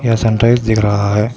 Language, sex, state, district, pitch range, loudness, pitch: Hindi, male, Karnataka, Bangalore, 105-115 Hz, -13 LUFS, 110 Hz